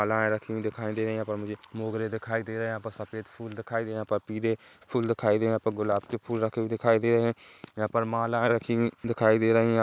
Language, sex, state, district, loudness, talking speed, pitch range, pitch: Hindi, male, Chhattisgarh, Kabirdham, -28 LUFS, 300 wpm, 110-115 Hz, 110 Hz